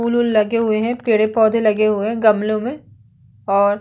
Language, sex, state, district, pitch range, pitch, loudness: Hindi, female, Bihar, Vaishali, 205-230 Hz, 215 Hz, -17 LUFS